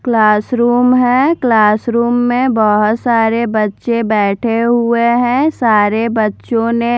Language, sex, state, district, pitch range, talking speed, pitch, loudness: Hindi, female, Bihar, Kaimur, 220-245 Hz, 110 wpm, 235 Hz, -13 LUFS